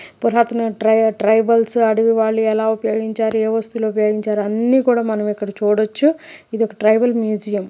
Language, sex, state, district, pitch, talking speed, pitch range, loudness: Telugu, male, Telangana, Karimnagar, 220 Hz, 150 wpm, 215-230 Hz, -17 LUFS